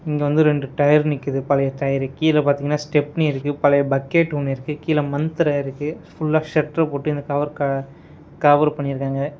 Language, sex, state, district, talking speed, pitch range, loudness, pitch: Tamil, male, Tamil Nadu, Nilgiris, 170 wpm, 140-150 Hz, -20 LUFS, 145 Hz